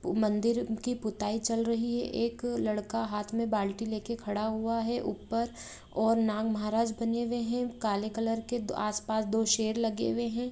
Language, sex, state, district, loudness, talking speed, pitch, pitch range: Hindi, female, Jharkhand, Jamtara, -31 LUFS, 175 wpm, 225 Hz, 215-235 Hz